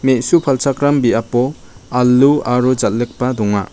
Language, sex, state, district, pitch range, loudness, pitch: Garo, male, Meghalaya, West Garo Hills, 120-135 Hz, -15 LUFS, 125 Hz